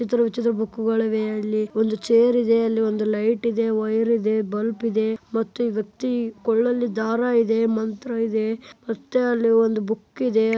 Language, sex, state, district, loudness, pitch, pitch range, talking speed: Kannada, male, Karnataka, Bellary, -22 LUFS, 225 Hz, 220-235 Hz, 145 wpm